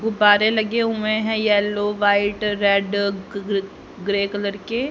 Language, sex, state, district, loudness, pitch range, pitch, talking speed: Hindi, female, Haryana, Rohtak, -20 LUFS, 200-220 Hz, 205 Hz, 135 wpm